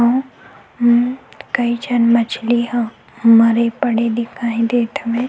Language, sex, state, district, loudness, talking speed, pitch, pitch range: Chhattisgarhi, female, Chhattisgarh, Sukma, -16 LUFS, 115 wpm, 235 Hz, 230-240 Hz